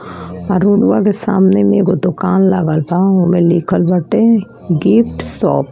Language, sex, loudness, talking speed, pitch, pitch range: Bhojpuri, female, -13 LUFS, 135 wpm, 190 Hz, 175-205 Hz